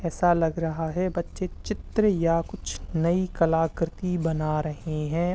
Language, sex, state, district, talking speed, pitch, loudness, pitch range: Hindi, male, Uttar Pradesh, Hamirpur, 145 wpm, 165 Hz, -26 LUFS, 160-180 Hz